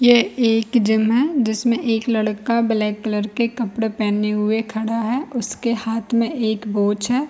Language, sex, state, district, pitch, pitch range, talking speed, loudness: Hindi, female, Chhattisgarh, Bilaspur, 225 Hz, 215-235 Hz, 175 wpm, -20 LUFS